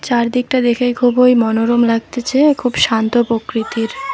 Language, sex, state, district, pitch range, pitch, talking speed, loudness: Bengali, female, West Bengal, Alipurduar, 230-250 Hz, 240 Hz, 115 wpm, -15 LUFS